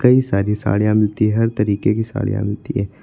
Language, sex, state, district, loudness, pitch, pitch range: Hindi, male, Uttar Pradesh, Lucknow, -18 LUFS, 105 Hz, 100-115 Hz